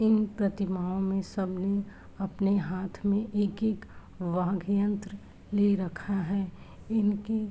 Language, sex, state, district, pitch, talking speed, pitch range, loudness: Hindi, female, Uttar Pradesh, Varanasi, 200 Hz, 120 wpm, 190-205 Hz, -30 LUFS